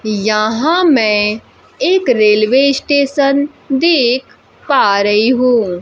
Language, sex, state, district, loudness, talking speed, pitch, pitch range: Hindi, female, Bihar, Kaimur, -12 LUFS, 95 wpm, 250 Hz, 215-280 Hz